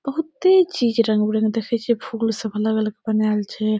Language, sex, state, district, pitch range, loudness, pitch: Maithili, female, Bihar, Saharsa, 215-235 Hz, -20 LUFS, 225 Hz